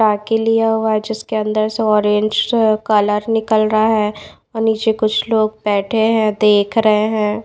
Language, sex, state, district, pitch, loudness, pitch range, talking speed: Hindi, female, Odisha, Nuapada, 215 Hz, -16 LUFS, 210-220 Hz, 145 wpm